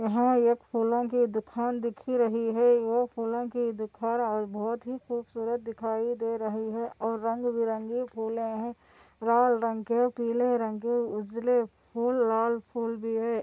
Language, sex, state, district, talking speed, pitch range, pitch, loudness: Hindi, female, Andhra Pradesh, Anantapur, 170 wpm, 225-240 Hz, 235 Hz, -29 LUFS